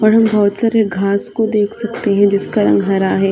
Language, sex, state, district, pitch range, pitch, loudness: Hindi, female, Chhattisgarh, Sarguja, 195-220 Hz, 205 Hz, -14 LUFS